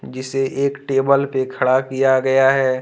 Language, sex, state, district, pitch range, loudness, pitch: Hindi, male, Jharkhand, Ranchi, 130-135 Hz, -18 LUFS, 135 Hz